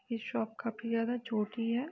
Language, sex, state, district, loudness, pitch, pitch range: Hindi, female, Uttar Pradesh, Jalaun, -35 LUFS, 230 Hz, 225-240 Hz